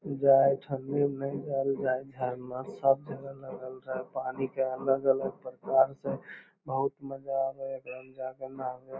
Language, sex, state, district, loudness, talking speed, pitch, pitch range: Magahi, male, Bihar, Lakhisarai, -31 LUFS, 135 wpm, 135 Hz, 130-135 Hz